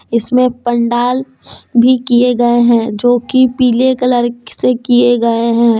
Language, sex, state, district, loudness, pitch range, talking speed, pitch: Hindi, female, Jharkhand, Deoghar, -12 LUFS, 235-250 Hz, 145 wpm, 245 Hz